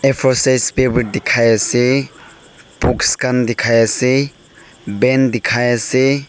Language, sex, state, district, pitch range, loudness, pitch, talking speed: Nagamese, male, Nagaland, Dimapur, 115-130 Hz, -15 LUFS, 125 Hz, 125 wpm